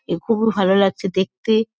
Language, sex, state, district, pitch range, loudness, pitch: Bengali, female, West Bengal, Kolkata, 190-225 Hz, -19 LUFS, 195 Hz